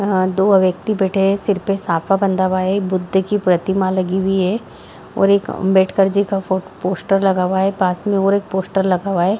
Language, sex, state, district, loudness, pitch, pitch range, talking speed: Hindi, female, Bihar, Jahanabad, -17 LUFS, 190 Hz, 185-195 Hz, 225 wpm